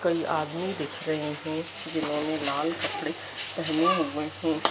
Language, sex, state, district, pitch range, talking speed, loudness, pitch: Hindi, female, Madhya Pradesh, Dhar, 150-165 Hz, 140 wpm, -29 LUFS, 155 Hz